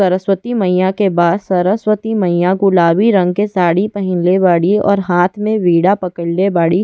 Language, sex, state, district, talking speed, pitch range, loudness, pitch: Bhojpuri, female, Uttar Pradesh, Ghazipur, 160 wpm, 180-200 Hz, -14 LUFS, 190 Hz